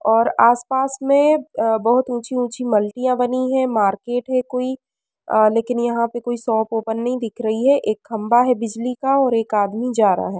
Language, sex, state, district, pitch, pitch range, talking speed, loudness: Hindi, female, Uttar Pradesh, Varanasi, 240 Hz, 225-255 Hz, 200 wpm, -19 LUFS